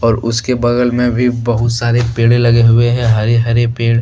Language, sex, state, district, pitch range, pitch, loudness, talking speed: Hindi, male, Jharkhand, Deoghar, 115-120 Hz, 120 Hz, -13 LUFS, 225 wpm